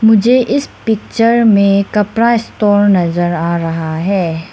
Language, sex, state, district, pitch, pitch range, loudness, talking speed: Hindi, female, Arunachal Pradesh, Lower Dibang Valley, 205 Hz, 175-230 Hz, -13 LUFS, 130 wpm